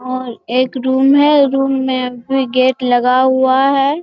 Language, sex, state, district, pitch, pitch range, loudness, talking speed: Hindi, female, Bihar, Jamui, 260 Hz, 255-270 Hz, -14 LUFS, 180 wpm